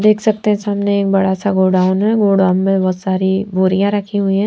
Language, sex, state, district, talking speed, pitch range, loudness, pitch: Hindi, female, Haryana, Charkhi Dadri, 230 wpm, 190-205 Hz, -15 LUFS, 195 Hz